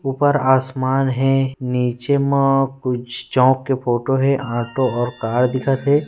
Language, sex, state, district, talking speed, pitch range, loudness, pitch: Chhattisgarhi, male, Chhattisgarh, Rajnandgaon, 150 wpm, 125-135 Hz, -18 LUFS, 130 Hz